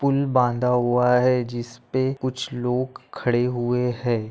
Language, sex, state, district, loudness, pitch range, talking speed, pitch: Hindi, male, Maharashtra, Nagpur, -23 LUFS, 120-130 Hz, 140 wpm, 125 Hz